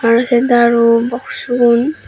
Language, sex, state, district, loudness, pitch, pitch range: Chakma, female, Tripura, Dhalai, -13 LUFS, 240 Hz, 235-245 Hz